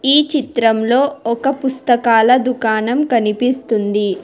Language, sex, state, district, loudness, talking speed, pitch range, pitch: Telugu, female, Telangana, Hyderabad, -15 LUFS, 85 wpm, 225-265 Hz, 245 Hz